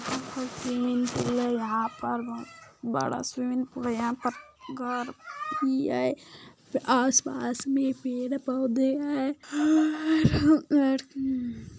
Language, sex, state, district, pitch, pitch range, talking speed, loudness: Hindi, female, Chhattisgarh, Korba, 260 Hz, 245-285 Hz, 105 wpm, -28 LUFS